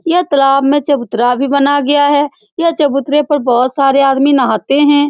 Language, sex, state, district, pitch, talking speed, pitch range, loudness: Hindi, female, Bihar, Saran, 285 Hz, 190 wpm, 275-290 Hz, -12 LUFS